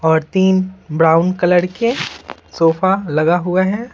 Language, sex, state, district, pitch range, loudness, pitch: Hindi, male, Bihar, Patna, 165-190 Hz, -15 LUFS, 180 Hz